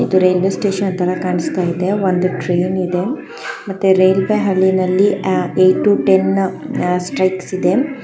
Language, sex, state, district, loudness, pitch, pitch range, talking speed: Kannada, female, Karnataka, Chamarajanagar, -16 LUFS, 185 Hz, 180-195 Hz, 140 wpm